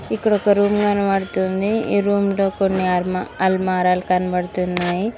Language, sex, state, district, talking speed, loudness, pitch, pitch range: Telugu, female, Telangana, Mahabubabad, 125 wpm, -19 LUFS, 190 Hz, 180-205 Hz